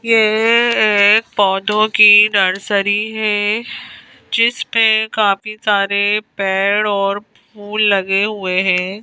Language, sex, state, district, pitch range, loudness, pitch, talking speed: Hindi, female, Madhya Pradesh, Bhopal, 200-220 Hz, -14 LUFS, 210 Hz, 100 wpm